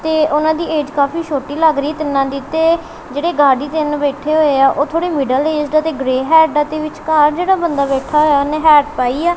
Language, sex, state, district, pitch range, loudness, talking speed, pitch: Punjabi, female, Punjab, Kapurthala, 280-315 Hz, -14 LUFS, 230 wpm, 300 Hz